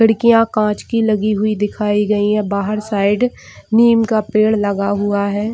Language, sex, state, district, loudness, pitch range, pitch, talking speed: Hindi, female, Chhattisgarh, Bilaspur, -16 LUFS, 205-220 Hz, 210 Hz, 175 wpm